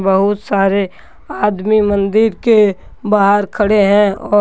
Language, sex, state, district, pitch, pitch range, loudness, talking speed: Hindi, male, Jharkhand, Deoghar, 205 Hz, 195-210 Hz, -13 LUFS, 125 wpm